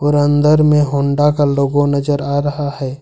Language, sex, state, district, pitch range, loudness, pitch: Hindi, male, Jharkhand, Ranchi, 140-145 Hz, -14 LUFS, 145 Hz